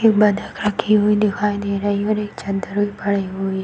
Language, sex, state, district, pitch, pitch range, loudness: Hindi, female, Uttar Pradesh, Varanasi, 205 Hz, 200-210 Hz, -20 LUFS